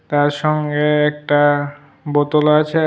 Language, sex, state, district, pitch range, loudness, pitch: Bengali, male, Tripura, West Tripura, 145-150 Hz, -16 LUFS, 150 Hz